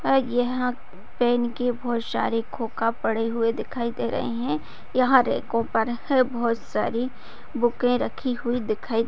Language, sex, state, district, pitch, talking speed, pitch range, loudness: Hindi, female, Maharashtra, Nagpur, 240 Hz, 145 wpm, 230-250 Hz, -25 LUFS